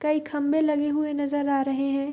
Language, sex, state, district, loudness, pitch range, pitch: Hindi, female, Bihar, Madhepura, -25 LUFS, 280-300 Hz, 290 Hz